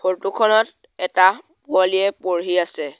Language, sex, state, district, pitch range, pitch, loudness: Assamese, male, Assam, Sonitpur, 180-200 Hz, 185 Hz, -19 LUFS